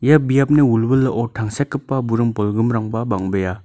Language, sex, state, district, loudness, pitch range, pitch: Garo, male, Meghalaya, North Garo Hills, -18 LUFS, 110-135 Hz, 115 Hz